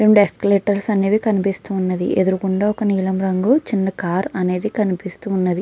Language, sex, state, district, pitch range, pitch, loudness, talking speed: Telugu, female, Andhra Pradesh, Krishna, 190-210 Hz, 195 Hz, -19 LUFS, 120 wpm